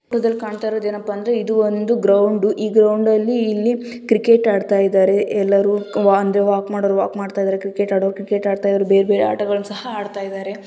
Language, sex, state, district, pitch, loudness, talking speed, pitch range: Kannada, female, Karnataka, Gulbarga, 205 Hz, -18 LUFS, 185 wpm, 200-220 Hz